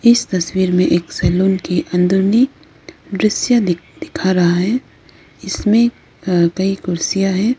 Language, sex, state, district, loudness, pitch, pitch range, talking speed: Hindi, female, Arunachal Pradesh, Lower Dibang Valley, -16 LUFS, 190 Hz, 175-210 Hz, 140 wpm